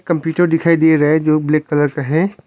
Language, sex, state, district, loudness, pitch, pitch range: Hindi, male, Arunachal Pradesh, Longding, -15 LUFS, 160 Hz, 150-170 Hz